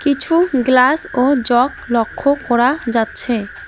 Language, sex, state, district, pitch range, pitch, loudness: Bengali, female, West Bengal, Alipurduar, 240-280 Hz, 255 Hz, -15 LUFS